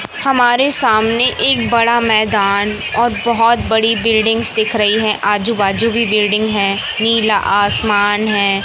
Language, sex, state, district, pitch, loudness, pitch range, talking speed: Hindi, male, Madhya Pradesh, Katni, 220 Hz, -13 LUFS, 210-230 Hz, 140 wpm